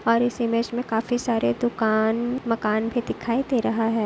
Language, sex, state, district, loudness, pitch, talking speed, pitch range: Hindi, female, Maharashtra, Dhule, -24 LUFS, 230 Hz, 175 wpm, 225-240 Hz